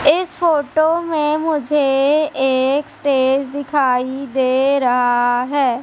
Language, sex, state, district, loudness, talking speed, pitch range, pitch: Hindi, male, Madhya Pradesh, Umaria, -17 LUFS, 105 wpm, 260-300 Hz, 275 Hz